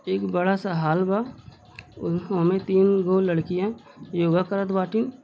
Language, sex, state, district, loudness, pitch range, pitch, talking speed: Hindi, female, Uttar Pradesh, Gorakhpur, -24 LUFS, 180-195 Hz, 190 Hz, 135 wpm